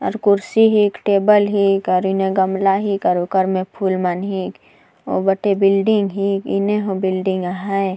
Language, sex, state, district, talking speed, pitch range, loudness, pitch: Sadri, female, Chhattisgarh, Jashpur, 180 wpm, 190-200 Hz, -17 LUFS, 195 Hz